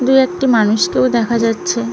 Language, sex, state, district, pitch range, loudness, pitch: Bengali, female, West Bengal, Malda, 215-255 Hz, -14 LUFS, 230 Hz